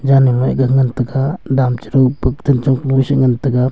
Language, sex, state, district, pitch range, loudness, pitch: Wancho, male, Arunachal Pradesh, Longding, 130-135 Hz, -15 LUFS, 130 Hz